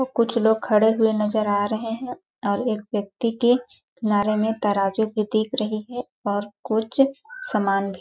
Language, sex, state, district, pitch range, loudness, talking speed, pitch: Hindi, female, Chhattisgarh, Balrampur, 205-235 Hz, -23 LUFS, 170 wpm, 220 Hz